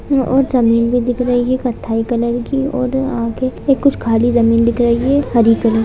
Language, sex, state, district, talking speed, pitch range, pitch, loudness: Hindi, female, Bihar, Bhagalpur, 205 wpm, 235-260 Hz, 245 Hz, -15 LUFS